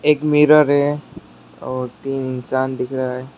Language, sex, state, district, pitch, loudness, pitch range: Hindi, male, West Bengal, Alipurduar, 130 Hz, -18 LUFS, 125-145 Hz